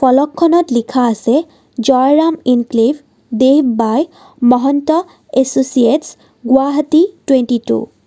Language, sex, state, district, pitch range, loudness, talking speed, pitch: Assamese, female, Assam, Kamrup Metropolitan, 245-305 Hz, -13 LUFS, 95 wpm, 265 Hz